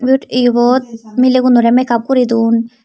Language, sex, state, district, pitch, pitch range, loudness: Chakma, female, Tripura, Dhalai, 245 Hz, 230-255 Hz, -12 LUFS